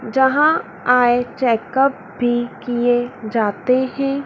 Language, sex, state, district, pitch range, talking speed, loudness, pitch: Hindi, female, Madhya Pradesh, Dhar, 235-265 Hz, 100 wpm, -18 LUFS, 245 Hz